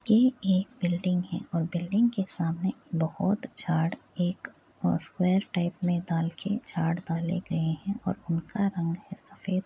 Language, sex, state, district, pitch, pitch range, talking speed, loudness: Hindi, female, Uttar Pradesh, Hamirpur, 180 Hz, 170-200 Hz, 145 wpm, -29 LUFS